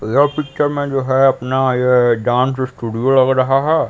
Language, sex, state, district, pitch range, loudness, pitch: Hindi, male, Bihar, Patna, 125-135 Hz, -15 LUFS, 130 Hz